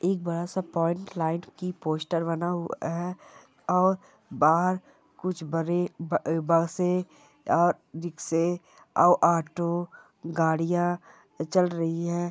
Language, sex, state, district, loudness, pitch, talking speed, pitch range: Hindi, female, Bihar, Bhagalpur, -27 LUFS, 170 Hz, 110 wpm, 165-180 Hz